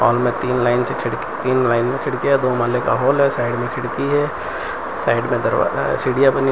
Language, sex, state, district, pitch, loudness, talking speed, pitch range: Hindi, male, Gujarat, Valsad, 125 Hz, -19 LUFS, 230 wpm, 120-135 Hz